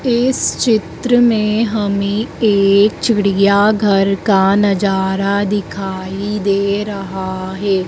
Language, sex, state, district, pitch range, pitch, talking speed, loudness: Hindi, female, Madhya Pradesh, Dhar, 195-210 Hz, 200 Hz, 90 wpm, -15 LUFS